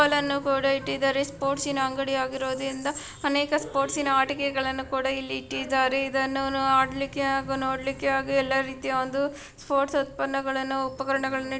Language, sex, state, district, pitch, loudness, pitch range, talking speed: Kannada, female, Karnataka, Dakshina Kannada, 270 Hz, -26 LUFS, 265-275 Hz, 125 wpm